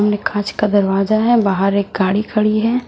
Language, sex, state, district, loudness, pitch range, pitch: Hindi, female, Himachal Pradesh, Shimla, -16 LUFS, 200-215 Hz, 210 Hz